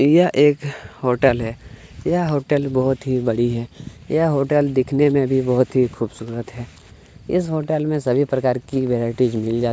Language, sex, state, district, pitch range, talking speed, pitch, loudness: Hindi, male, Chhattisgarh, Kabirdham, 120-145 Hz, 180 wpm, 130 Hz, -20 LUFS